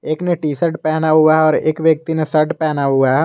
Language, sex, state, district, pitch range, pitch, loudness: Hindi, male, Jharkhand, Garhwa, 155-160 Hz, 155 Hz, -15 LUFS